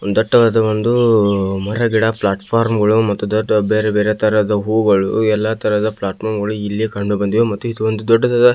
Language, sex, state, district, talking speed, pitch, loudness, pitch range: Kannada, male, Karnataka, Belgaum, 145 wpm, 110 Hz, -16 LUFS, 105-110 Hz